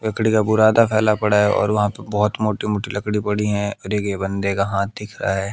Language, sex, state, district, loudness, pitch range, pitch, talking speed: Hindi, male, Haryana, Jhajjar, -19 LUFS, 100-110 Hz, 105 Hz, 250 wpm